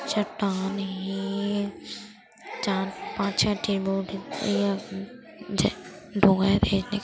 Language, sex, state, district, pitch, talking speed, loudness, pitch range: Hindi, male, Chhattisgarh, Kabirdham, 200 Hz, 75 wpm, -27 LUFS, 195-205 Hz